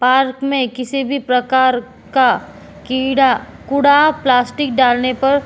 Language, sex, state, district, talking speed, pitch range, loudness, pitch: Hindi, female, Uttarakhand, Tehri Garhwal, 130 wpm, 250-275 Hz, -15 LUFS, 260 Hz